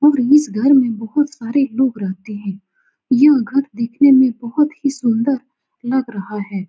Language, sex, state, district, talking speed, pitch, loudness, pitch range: Hindi, female, Bihar, Saran, 170 wpm, 260 Hz, -16 LUFS, 225-285 Hz